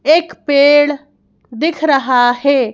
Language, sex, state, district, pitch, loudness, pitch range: Hindi, female, Madhya Pradesh, Bhopal, 285 Hz, -13 LUFS, 260-295 Hz